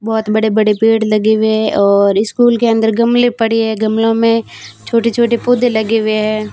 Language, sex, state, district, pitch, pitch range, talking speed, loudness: Hindi, female, Rajasthan, Barmer, 225 Hz, 215-230 Hz, 210 wpm, -13 LUFS